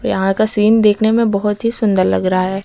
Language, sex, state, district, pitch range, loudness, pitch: Hindi, female, Uttar Pradesh, Lucknow, 195-220 Hz, -14 LUFS, 210 Hz